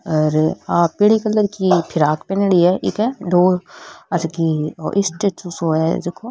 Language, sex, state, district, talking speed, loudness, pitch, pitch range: Rajasthani, female, Rajasthan, Nagaur, 150 wpm, -18 LUFS, 175 Hz, 160-200 Hz